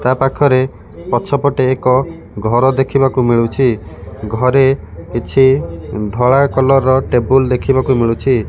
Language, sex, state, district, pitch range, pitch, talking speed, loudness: Odia, male, Odisha, Malkangiri, 110-135 Hz, 130 Hz, 115 wpm, -14 LUFS